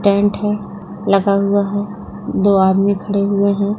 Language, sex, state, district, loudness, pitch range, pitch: Hindi, female, Rajasthan, Nagaur, -16 LUFS, 200-205 Hz, 200 Hz